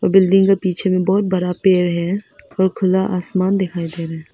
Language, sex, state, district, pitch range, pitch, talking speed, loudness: Hindi, female, Arunachal Pradesh, Papum Pare, 180-195 Hz, 185 Hz, 205 wpm, -17 LUFS